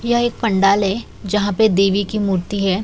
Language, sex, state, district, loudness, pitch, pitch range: Hindi, female, Chhattisgarh, Raipur, -17 LUFS, 205 Hz, 195-220 Hz